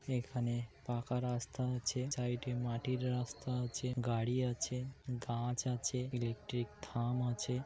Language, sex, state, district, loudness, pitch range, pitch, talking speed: Bengali, male, West Bengal, North 24 Parganas, -39 LUFS, 120-125 Hz, 125 Hz, 125 wpm